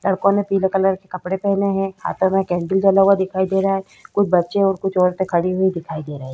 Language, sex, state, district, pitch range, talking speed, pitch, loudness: Hindi, female, Chhattisgarh, Korba, 185-195 Hz, 245 wpm, 190 Hz, -19 LUFS